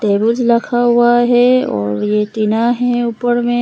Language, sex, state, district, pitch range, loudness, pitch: Hindi, female, Arunachal Pradesh, Lower Dibang Valley, 215-240 Hz, -14 LUFS, 240 Hz